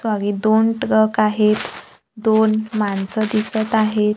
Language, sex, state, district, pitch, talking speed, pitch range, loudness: Marathi, female, Maharashtra, Gondia, 215 Hz, 115 wpm, 210-220 Hz, -18 LUFS